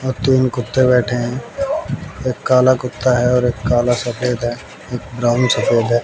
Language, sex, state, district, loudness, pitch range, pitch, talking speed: Hindi, male, Bihar, West Champaran, -17 LUFS, 120-130 Hz, 125 Hz, 180 wpm